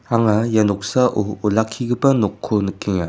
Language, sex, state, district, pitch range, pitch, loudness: Garo, male, Meghalaya, West Garo Hills, 105-115 Hz, 110 Hz, -19 LUFS